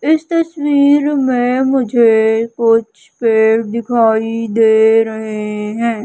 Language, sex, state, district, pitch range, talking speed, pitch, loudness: Hindi, female, Madhya Pradesh, Umaria, 220-265 Hz, 100 wpm, 230 Hz, -13 LUFS